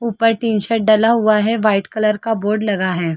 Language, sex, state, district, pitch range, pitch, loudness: Hindi, female, Chhattisgarh, Balrampur, 205-225 Hz, 215 Hz, -16 LUFS